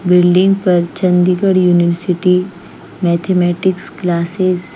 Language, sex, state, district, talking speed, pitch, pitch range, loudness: Hindi, female, Chandigarh, Chandigarh, 90 wpm, 180 Hz, 175-185 Hz, -13 LUFS